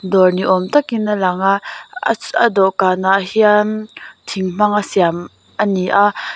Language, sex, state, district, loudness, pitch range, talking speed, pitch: Mizo, female, Mizoram, Aizawl, -15 LUFS, 185-210 Hz, 180 wpm, 195 Hz